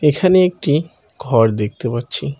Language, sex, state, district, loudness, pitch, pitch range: Bengali, male, West Bengal, Cooch Behar, -16 LUFS, 140 Hz, 120-165 Hz